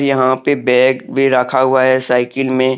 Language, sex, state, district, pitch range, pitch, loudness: Hindi, male, Jharkhand, Deoghar, 130-135 Hz, 130 Hz, -14 LUFS